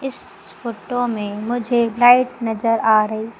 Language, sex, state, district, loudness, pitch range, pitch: Hindi, female, Madhya Pradesh, Umaria, -18 LUFS, 220-245 Hz, 230 Hz